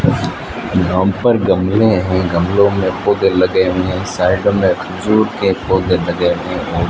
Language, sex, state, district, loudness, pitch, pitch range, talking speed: Hindi, male, Rajasthan, Bikaner, -15 LUFS, 95 Hz, 90-100 Hz, 150 wpm